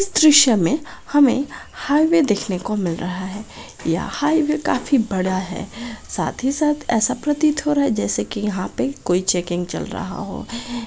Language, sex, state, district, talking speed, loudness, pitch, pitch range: Hindi, female, Bihar, Araria, 175 wpm, -20 LUFS, 240 Hz, 195-295 Hz